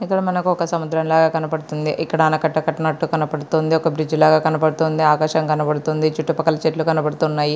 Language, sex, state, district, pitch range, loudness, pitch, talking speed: Telugu, female, Andhra Pradesh, Srikakulam, 155-160 Hz, -19 LUFS, 160 Hz, 160 wpm